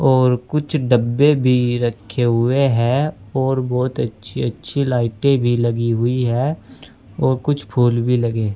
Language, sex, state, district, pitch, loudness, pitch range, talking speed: Hindi, male, Uttar Pradesh, Saharanpur, 125 Hz, -18 LUFS, 120-135 Hz, 155 wpm